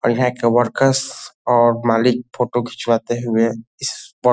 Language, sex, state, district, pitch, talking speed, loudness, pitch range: Hindi, male, Bihar, Lakhisarai, 120 Hz, 150 wpm, -18 LUFS, 115-125 Hz